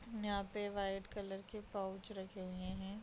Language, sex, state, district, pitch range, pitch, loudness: Hindi, female, Bihar, Begusarai, 195-205 Hz, 195 Hz, -44 LUFS